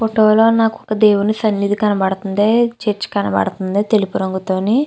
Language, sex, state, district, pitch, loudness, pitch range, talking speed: Telugu, female, Andhra Pradesh, Chittoor, 210 Hz, -16 LUFS, 195-220 Hz, 150 wpm